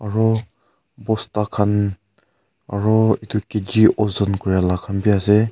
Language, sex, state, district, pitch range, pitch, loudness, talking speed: Nagamese, male, Nagaland, Kohima, 100-110 Hz, 105 Hz, -19 LUFS, 130 wpm